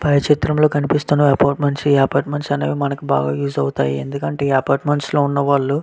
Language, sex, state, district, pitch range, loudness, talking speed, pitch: Telugu, male, Andhra Pradesh, Visakhapatnam, 135-145 Hz, -18 LUFS, 165 wpm, 140 Hz